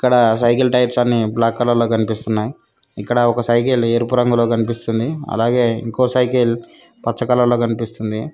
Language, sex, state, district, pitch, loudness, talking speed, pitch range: Telugu, female, Telangana, Mahabubabad, 120 Hz, -17 LUFS, 150 wpm, 115-125 Hz